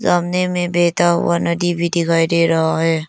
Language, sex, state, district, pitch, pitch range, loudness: Hindi, female, Arunachal Pradesh, Lower Dibang Valley, 170 Hz, 165-175 Hz, -16 LUFS